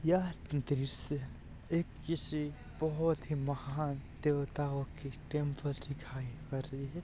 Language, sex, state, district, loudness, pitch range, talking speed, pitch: Hindi, male, Bihar, East Champaran, -37 LUFS, 135-150 Hz, 110 wpm, 145 Hz